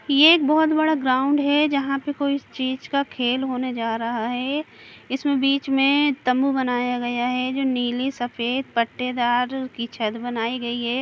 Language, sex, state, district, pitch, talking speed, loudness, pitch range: Hindi, female, Chhattisgarh, Kabirdham, 260 Hz, 175 wpm, -22 LUFS, 245-280 Hz